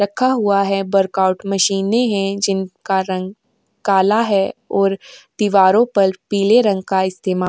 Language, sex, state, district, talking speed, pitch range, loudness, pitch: Hindi, female, Uttar Pradesh, Jyotiba Phule Nagar, 145 wpm, 190-210 Hz, -17 LUFS, 195 Hz